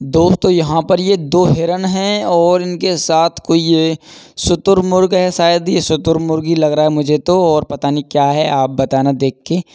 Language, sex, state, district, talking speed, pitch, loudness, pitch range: Hindi, male, Uttar Pradesh, Budaun, 205 wpm, 165 Hz, -14 LUFS, 150-180 Hz